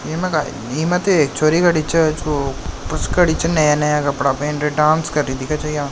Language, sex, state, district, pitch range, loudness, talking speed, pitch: Marwari, male, Rajasthan, Nagaur, 145-160 Hz, -18 LUFS, 195 wpm, 150 Hz